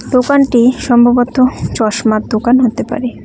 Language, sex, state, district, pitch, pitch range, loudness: Bengali, female, West Bengal, Cooch Behar, 245 Hz, 235-255 Hz, -12 LUFS